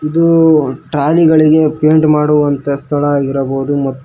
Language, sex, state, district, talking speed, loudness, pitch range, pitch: Kannada, male, Karnataka, Koppal, 105 wpm, -12 LUFS, 140-155 Hz, 150 Hz